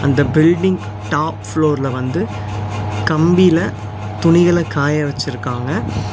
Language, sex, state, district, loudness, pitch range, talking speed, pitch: Tamil, male, Tamil Nadu, Nilgiris, -16 LUFS, 105-155 Hz, 90 wpm, 130 Hz